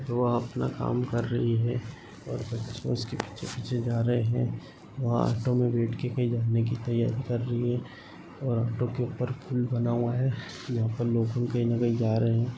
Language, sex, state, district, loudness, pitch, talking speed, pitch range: Marathi, male, Maharashtra, Sindhudurg, -29 LUFS, 120 Hz, 200 wpm, 115-125 Hz